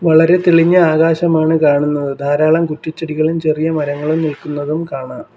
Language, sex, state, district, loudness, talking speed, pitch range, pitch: Malayalam, male, Kerala, Kollam, -14 LUFS, 125 wpm, 150-165 Hz, 155 Hz